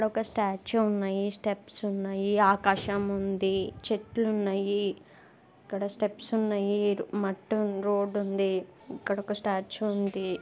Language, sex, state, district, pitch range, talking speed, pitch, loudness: Telugu, female, Andhra Pradesh, Guntur, 195-210 Hz, 115 wpm, 200 Hz, -29 LUFS